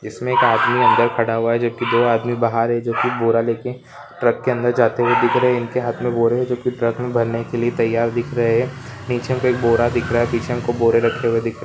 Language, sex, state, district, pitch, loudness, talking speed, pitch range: Hindi, male, Rajasthan, Nagaur, 120 Hz, -18 LUFS, 290 wpm, 115-125 Hz